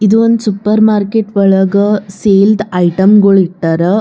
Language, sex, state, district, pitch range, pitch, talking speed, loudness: Kannada, female, Karnataka, Bijapur, 190-210 Hz, 200 Hz, 150 wpm, -10 LUFS